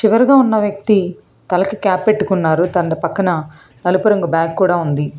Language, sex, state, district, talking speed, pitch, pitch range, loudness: Telugu, female, Telangana, Hyderabad, 150 wpm, 185 Hz, 165-205 Hz, -15 LUFS